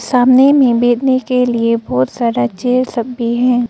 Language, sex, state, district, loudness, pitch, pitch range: Hindi, female, Arunachal Pradesh, Papum Pare, -13 LUFS, 245 Hz, 235-255 Hz